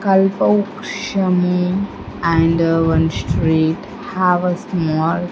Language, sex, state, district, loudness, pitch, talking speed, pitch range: English, female, Andhra Pradesh, Sri Satya Sai, -17 LUFS, 180 Hz, 90 wpm, 165-195 Hz